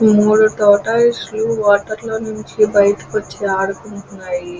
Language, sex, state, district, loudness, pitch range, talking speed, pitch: Telugu, female, Andhra Pradesh, Krishna, -16 LUFS, 200-220 Hz, 130 wpm, 210 Hz